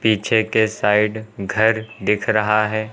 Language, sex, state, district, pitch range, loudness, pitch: Hindi, male, Uttar Pradesh, Lucknow, 105-110 Hz, -19 LUFS, 110 Hz